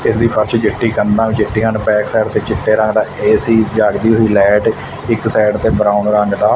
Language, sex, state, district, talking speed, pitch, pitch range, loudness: Punjabi, male, Punjab, Fazilka, 200 wpm, 110 Hz, 105-115 Hz, -13 LUFS